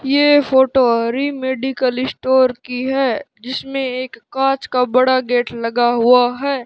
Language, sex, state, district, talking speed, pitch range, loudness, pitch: Hindi, male, Rajasthan, Bikaner, 145 wpm, 245-270 Hz, -16 LUFS, 255 Hz